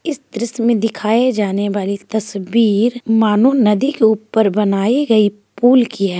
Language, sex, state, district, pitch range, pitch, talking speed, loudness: Hindi, female, Bihar, Gaya, 205-235 Hz, 220 Hz, 155 wpm, -15 LUFS